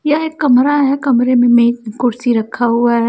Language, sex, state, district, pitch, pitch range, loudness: Hindi, female, Haryana, Charkhi Dadri, 245 Hz, 235-275 Hz, -13 LUFS